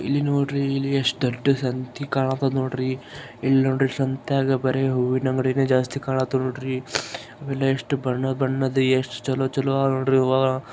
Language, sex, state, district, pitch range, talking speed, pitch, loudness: Kannada, male, Karnataka, Gulbarga, 130-135 Hz, 145 wpm, 130 Hz, -23 LUFS